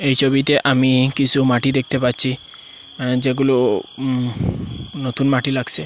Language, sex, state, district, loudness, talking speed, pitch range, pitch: Bengali, male, Assam, Hailakandi, -17 LUFS, 110 wpm, 130-135 Hz, 130 Hz